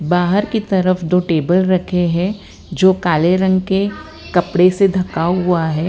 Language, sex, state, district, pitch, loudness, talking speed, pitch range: Hindi, female, Gujarat, Valsad, 180 Hz, -16 LUFS, 165 wpm, 175-190 Hz